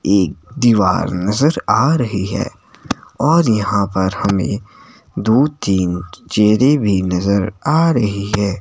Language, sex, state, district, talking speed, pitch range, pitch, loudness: Hindi, male, Himachal Pradesh, Shimla, 125 wpm, 95-115 Hz, 100 Hz, -16 LUFS